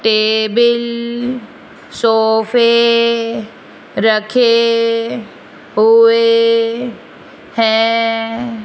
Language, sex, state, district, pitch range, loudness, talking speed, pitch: Hindi, female, Rajasthan, Jaipur, 225-235 Hz, -13 LUFS, 35 wpm, 230 Hz